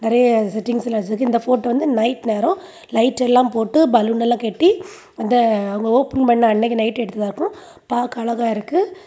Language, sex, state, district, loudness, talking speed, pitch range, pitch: Tamil, female, Tamil Nadu, Kanyakumari, -18 LUFS, 165 wpm, 225-270 Hz, 240 Hz